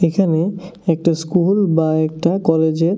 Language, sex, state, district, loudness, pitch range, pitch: Bengali, male, Tripura, West Tripura, -17 LUFS, 160-185 Hz, 170 Hz